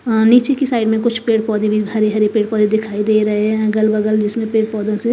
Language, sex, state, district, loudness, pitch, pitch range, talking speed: Hindi, female, Bihar, Katihar, -16 LUFS, 215 Hz, 215-225 Hz, 270 wpm